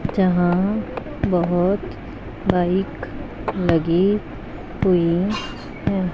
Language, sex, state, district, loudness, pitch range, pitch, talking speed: Hindi, female, Punjab, Pathankot, -21 LUFS, 170-190 Hz, 180 Hz, 60 wpm